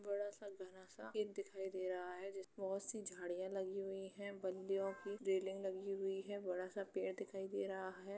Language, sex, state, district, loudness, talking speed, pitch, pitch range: Hindi, female, Uttar Pradesh, Jalaun, -46 LUFS, 220 wpm, 195 Hz, 185-200 Hz